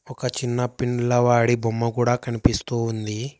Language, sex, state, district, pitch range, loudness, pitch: Telugu, male, Telangana, Hyderabad, 115-125 Hz, -22 LUFS, 120 Hz